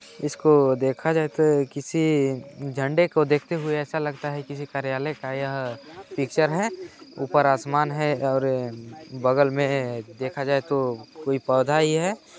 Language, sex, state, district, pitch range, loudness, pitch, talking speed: Hindi, male, Chhattisgarh, Balrampur, 135-155 Hz, -24 LUFS, 140 Hz, 155 wpm